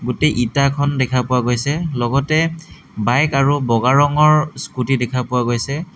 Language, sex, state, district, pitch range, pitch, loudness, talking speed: Assamese, male, Assam, Hailakandi, 125-150 Hz, 135 Hz, -17 LUFS, 140 wpm